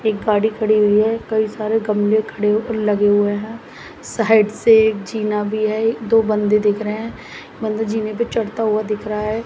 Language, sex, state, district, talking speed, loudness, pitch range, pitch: Hindi, female, Haryana, Jhajjar, 195 wpm, -18 LUFS, 210-220 Hz, 215 Hz